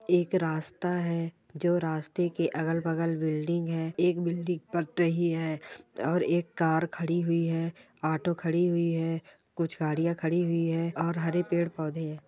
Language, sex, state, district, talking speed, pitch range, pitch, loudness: Hindi, male, Chhattisgarh, Sukma, 165 wpm, 160-175 Hz, 165 Hz, -29 LUFS